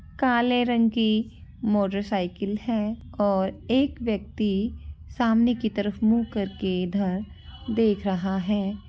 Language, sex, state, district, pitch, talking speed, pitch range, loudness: Hindi, female, Uttar Pradesh, Varanasi, 210 Hz, 120 wpm, 195-230 Hz, -25 LUFS